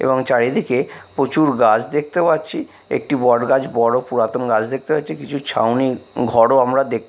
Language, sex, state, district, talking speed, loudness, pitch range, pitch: Bengali, male, Bihar, Katihar, 160 wpm, -18 LUFS, 115-145 Hz, 130 Hz